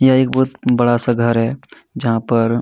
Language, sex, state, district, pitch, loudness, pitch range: Hindi, male, Chhattisgarh, Kabirdham, 120 Hz, -16 LUFS, 115-130 Hz